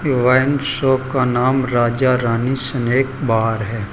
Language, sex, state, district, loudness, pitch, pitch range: Hindi, male, Gujarat, Valsad, -17 LUFS, 130 Hz, 120-135 Hz